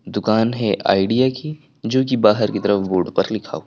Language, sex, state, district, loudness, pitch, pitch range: Hindi, male, Uttar Pradesh, Lucknow, -18 LUFS, 110 Hz, 100-130 Hz